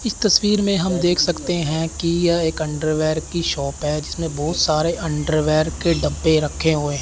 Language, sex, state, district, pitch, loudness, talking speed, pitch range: Hindi, male, Chandigarh, Chandigarh, 160 Hz, -20 LUFS, 190 wpm, 155-175 Hz